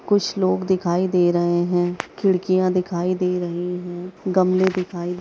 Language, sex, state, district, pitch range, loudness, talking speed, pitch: Hindi, female, Uttar Pradesh, Hamirpur, 175-185 Hz, -21 LUFS, 175 wpm, 180 Hz